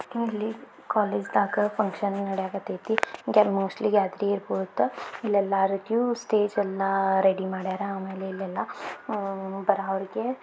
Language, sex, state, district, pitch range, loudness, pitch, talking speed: Kannada, female, Karnataka, Belgaum, 195-210 Hz, -27 LUFS, 200 Hz, 110 wpm